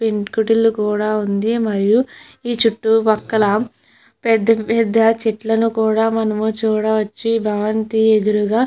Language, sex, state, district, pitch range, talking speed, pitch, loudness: Telugu, female, Andhra Pradesh, Chittoor, 215-225 Hz, 110 wpm, 220 Hz, -17 LUFS